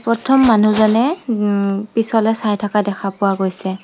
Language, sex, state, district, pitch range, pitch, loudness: Assamese, female, Assam, Sonitpur, 200-225 Hz, 215 Hz, -16 LUFS